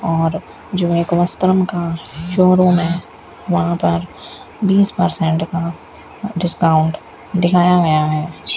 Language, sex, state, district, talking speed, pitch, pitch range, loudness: Hindi, female, Rajasthan, Bikaner, 110 wpm, 170 Hz, 160-180 Hz, -16 LUFS